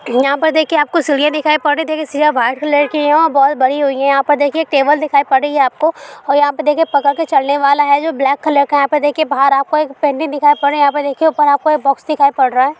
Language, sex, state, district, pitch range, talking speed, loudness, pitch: Hindi, female, Bihar, Begusarai, 280-305 Hz, 305 wpm, -13 LUFS, 290 Hz